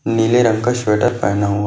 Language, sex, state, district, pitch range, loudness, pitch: Hindi, male, Chhattisgarh, Bastar, 105-120 Hz, -16 LUFS, 115 Hz